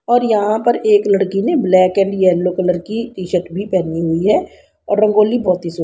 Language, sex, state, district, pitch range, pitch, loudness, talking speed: Hindi, female, Haryana, Rohtak, 180-210 Hz, 195 Hz, -15 LUFS, 225 wpm